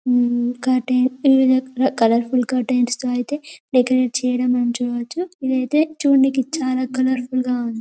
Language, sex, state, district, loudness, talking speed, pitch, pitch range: Telugu, female, Telangana, Karimnagar, -19 LUFS, 115 wpm, 255 Hz, 245-265 Hz